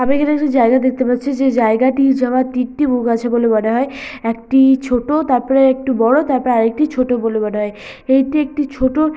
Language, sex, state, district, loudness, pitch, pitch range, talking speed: Bengali, female, West Bengal, Purulia, -15 LUFS, 260 Hz, 240-275 Hz, 190 wpm